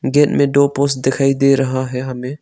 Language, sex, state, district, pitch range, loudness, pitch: Hindi, male, Arunachal Pradesh, Longding, 130-140 Hz, -16 LUFS, 135 Hz